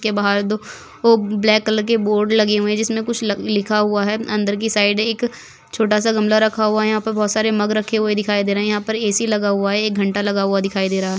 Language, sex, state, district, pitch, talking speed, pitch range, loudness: Hindi, female, Goa, North and South Goa, 210 Hz, 285 wpm, 205-220 Hz, -18 LUFS